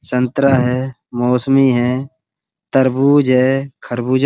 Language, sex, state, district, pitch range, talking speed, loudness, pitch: Hindi, male, Uttar Pradesh, Muzaffarnagar, 125-135 Hz, 115 wpm, -15 LUFS, 130 Hz